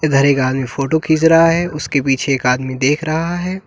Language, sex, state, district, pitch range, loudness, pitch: Hindi, male, Uttar Pradesh, Lalitpur, 135-165 Hz, -15 LUFS, 145 Hz